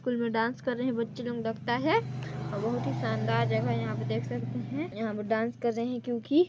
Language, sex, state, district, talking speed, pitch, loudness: Hindi, female, Chhattisgarh, Balrampur, 250 wpm, 225 Hz, -31 LUFS